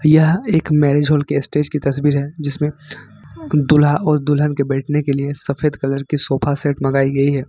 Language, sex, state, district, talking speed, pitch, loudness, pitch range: Hindi, male, Jharkhand, Ranchi, 200 wpm, 145 Hz, -17 LUFS, 140-150 Hz